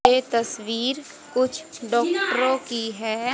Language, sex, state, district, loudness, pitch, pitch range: Hindi, female, Haryana, Jhajjar, -24 LUFS, 245 Hz, 230-260 Hz